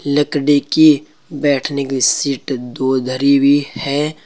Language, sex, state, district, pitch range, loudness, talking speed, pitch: Hindi, male, Uttar Pradesh, Saharanpur, 135-145 Hz, -15 LUFS, 125 wpm, 140 Hz